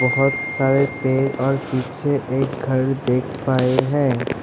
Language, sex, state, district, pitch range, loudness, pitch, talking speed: Hindi, male, Assam, Sonitpur, 130-135 Hz, -20 LUFS, 135 Hz, 135 wpm